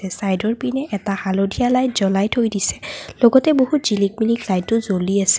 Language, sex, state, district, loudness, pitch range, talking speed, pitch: Assamese, female, Assam, Kamrup Metropolitan, -18 LUFS, 195-245 Hz, 155 wpm, 210 Hz